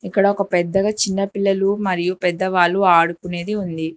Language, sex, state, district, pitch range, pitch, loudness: Telugu, female, Telangana, Hyderabad, 175-200 Hz, 190 Hz, -18 LUFS